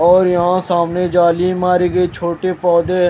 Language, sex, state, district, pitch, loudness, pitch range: Hindi, male, Maharashtra, Washim, 180 Hz, -15 LUFS, 175-180 Hz